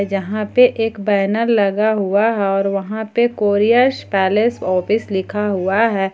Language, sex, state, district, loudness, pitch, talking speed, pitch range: Hindi, female, Jharkhand, Ranchi, -17 LUFS, 210 Hz, 155 wpm, 195-225 Hz